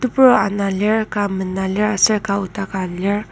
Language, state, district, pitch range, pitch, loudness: Ao, Nagaland, Kohima, 195-215 Hz, 200 Hz, -18 LUFS